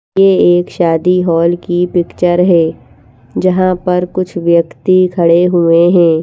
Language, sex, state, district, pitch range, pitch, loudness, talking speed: Hindi, female, Madhya Pradesh, Bhopal, 170-180 Hz, 175 Hz, -11 LUFS, 135 wpm